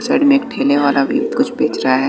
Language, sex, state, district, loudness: Hindi, male, Bihar, West Champaran, -15 LUFS